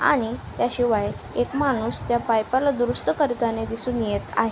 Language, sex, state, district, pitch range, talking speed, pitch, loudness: Marathi, female, Maharashtra, Aurangabad, 225-250 Hz, 160 wpm, 240 Hz, -24 LUFS